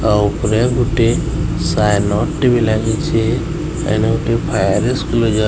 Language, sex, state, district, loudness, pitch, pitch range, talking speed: Odia, male, Odisha, Sambalpur, -16 LUFS, 115 Hz, 105-125 Hz, 140 wpm